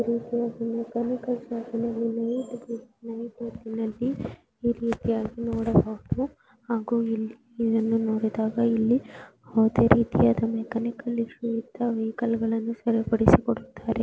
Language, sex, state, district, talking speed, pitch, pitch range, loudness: Kannada, female, Karnataka, Gulbarga, 60 wpm, 230 Hz, 225-235 Hz, -26 LUFS